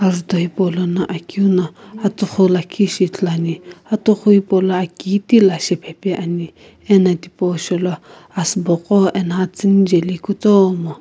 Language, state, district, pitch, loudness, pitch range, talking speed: Sumi, Nagaland, Kohima, 185 Hz, -16 LUFS, 175-195 Hz, 145 wpm